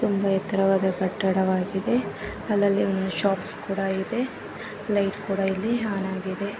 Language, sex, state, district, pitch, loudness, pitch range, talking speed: Kannada, female, Karnataka, Gulbarga, 195 Hz, -25 LUFS, 190-205 Hz, 120 wpm